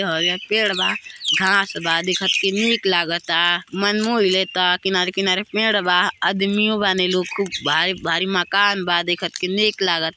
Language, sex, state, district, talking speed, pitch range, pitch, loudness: Hindi, female, Uttar Pradesh, Gorakhpur, 155 wpm, 175-200 Hz, 185 Hz, -18 LUFS